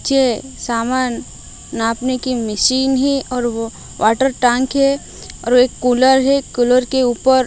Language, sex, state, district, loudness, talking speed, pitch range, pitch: Hindi, female, Odisha, Malkangiri, -16 LUFS, 145 wpm, 240-265 Hz, 255 Hz